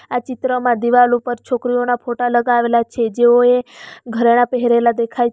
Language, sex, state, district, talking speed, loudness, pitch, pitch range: Gujarati, female, Gujarat, Valsad, 155 wpm, -16 LUFS, 245 Hz, 235-245 Hz